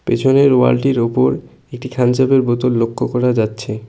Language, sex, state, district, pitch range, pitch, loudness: Bengali, male, West Bengal, Cooch Behar, 115-130 Hz, 125 Hz, -15 LUFS